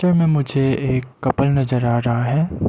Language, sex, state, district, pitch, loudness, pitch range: Hindi, male, Arunachal Pradesh, Lower Dibang Valley, 135 Hz, -19 LUFS, 125-145 Hz